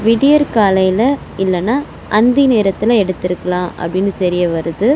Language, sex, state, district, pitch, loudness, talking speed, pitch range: Tamil, female, Tamil Nadu, Chennai, 200 Hz, -14 LUFS, 95 wpm, 180-235 Hz